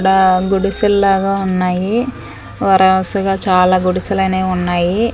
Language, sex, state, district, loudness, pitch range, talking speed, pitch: Telugu, female, Andhra Pradesh, Manyam, -14 LUFS, 185-195 Hz, 80 wpm, 190 Hz